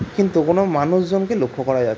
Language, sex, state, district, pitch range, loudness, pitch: Bengali, male, West Bengal, Jhargram, 135-195 Hz, -19 LUFS, 180 Hz